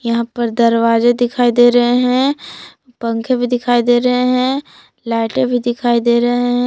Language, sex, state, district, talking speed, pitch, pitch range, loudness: Hindi, female, Jharkhand, Palamu, 170 wpm, 245 Hz, 235-250 Hz, -14 LUFS